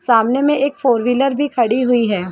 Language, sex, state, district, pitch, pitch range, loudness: Hindi, female, Chhattisgarh, Sarguja, 245 Hz, 235-275 Hz, -16 LUFS